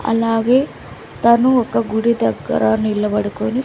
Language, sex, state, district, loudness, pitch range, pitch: Telugu, female, Andhra Pradesh, Sri Satya Sai, -16 LUFS, 210-235 Hz, 225 Hz